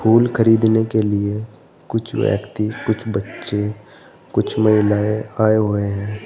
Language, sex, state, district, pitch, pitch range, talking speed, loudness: Hindi, male, Uttar Pradesh, Saharanpur, 110 Hz, 105-110 Hz, 125 wpm, -19 LUFS